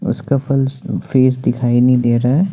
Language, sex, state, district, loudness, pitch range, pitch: Hindi, male, Chandigarh, Chandigarh, -15 LUFS, 120-140 Hz, 130 Hz